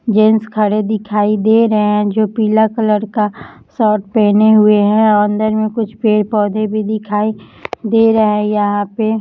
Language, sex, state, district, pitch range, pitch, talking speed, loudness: Hindi, female, Jharkhand, Jamtara, 210-220 Hz, 215 Hz, 175 wpm, -13 LUFS